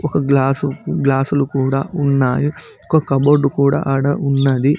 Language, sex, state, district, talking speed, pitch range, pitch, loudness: Telugu, male, Telangana, Mahabubabad, 125 wpm, 135-145 Hz, 140 Hz, -16 LUFS